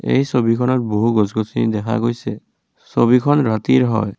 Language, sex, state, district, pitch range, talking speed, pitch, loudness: Assamese, male, Assam, Kamrup Metropolitan, 110-125 Hz, 145 wpm, 115 Hz, -17 LUFS